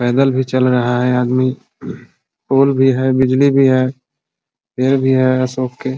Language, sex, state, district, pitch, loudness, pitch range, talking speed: Hindi, male, Bihar, Muzaffarpur, 130 Hz, -14 LUFS, 130-135 Hz, 180 wpm